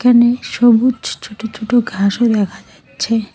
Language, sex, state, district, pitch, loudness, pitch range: Bengali, female, West Bengal, Cooch Behar, 225 Hz, -15 LUFS, 215-240 Hz